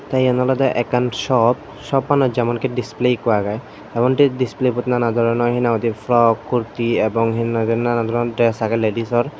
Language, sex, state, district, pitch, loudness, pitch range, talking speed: Chakma, male, Tripura, Dhalai, 120 Hz, -18 LUFS, 115-125 Hz, 200 wpm